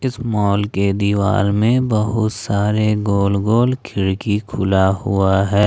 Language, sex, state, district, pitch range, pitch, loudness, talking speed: Hindi, male, Jharkhand, Ranchi, 100-110 Hz, 100 Hz, -17 LUFS, 140 wpm